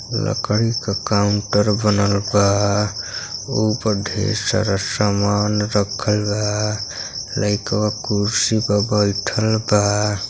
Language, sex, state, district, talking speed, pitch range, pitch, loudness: Bhojpuri, male, Uttar Pradesh, Gorakhpur, 95 wpm, 100-110 Hz, 105 Hz, -19 LUFS